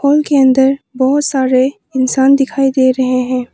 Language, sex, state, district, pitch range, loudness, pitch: Hindi, female, Arunachal Pradesh, Papum Pare, 255-275 Hz, -12 LUFS, 265 Hz